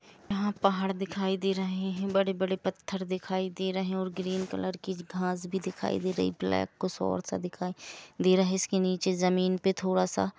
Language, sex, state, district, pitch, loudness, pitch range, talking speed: Hindi, female, Jharkhand, Jamtara, 185 Hz, -30 LUFS, 180-190 Hz, 210 wpm